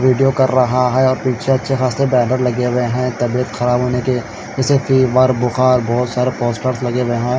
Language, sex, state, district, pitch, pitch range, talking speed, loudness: Hindi, male, Haryana, Charkhi Dadri, 125 Hz, 125-130 Hz, 205 wpm, -16 LUFS